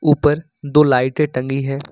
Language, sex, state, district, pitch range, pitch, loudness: Hindi, male, Jharkhand, Ranchi, 135-150 Hz, 145 Hz, -17 LUFS